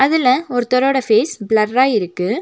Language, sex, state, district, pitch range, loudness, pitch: Tamil, female, Tamil Nadu, Nilgiris, 215-265 Hz, -16 LUFS, 250 Hz